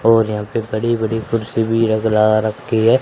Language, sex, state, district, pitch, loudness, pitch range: Hindi, male, Haryana, Rohtak, 110 Hz, -17 LUFS, 110-115 Hz